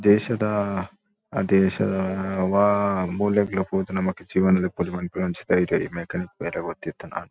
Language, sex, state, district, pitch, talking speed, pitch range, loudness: Tulu, male, Karnataka, Dakshina Kannada, 95 Hz, 105 wpm, 95-100 Hz, -24 LUFS